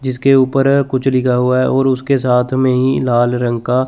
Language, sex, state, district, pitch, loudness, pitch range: Hindi, male, Chandigarh, Chandigarh, 130 Hz, -14 LUFS, 125-135 Hz